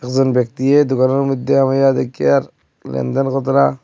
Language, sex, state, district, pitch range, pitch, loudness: Bengali, male, Assam, Hailakandi, 125-135 Hz, 135 Hz, -16 LUFS